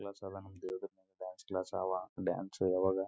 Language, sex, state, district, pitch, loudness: Kannada, male, Karnataka, Raichur, 95 Hz, -39 LUFS